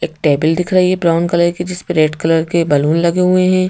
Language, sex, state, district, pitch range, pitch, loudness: Hindi, female, Madhya Pradesh, Bhopal, 160-180 Hz, 170 Hz, -14 LUFS